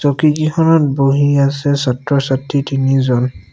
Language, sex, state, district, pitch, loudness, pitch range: Assamese, male, Assam, Sonitpur, 140 Hz, -14 LUFS, 135-145 Hz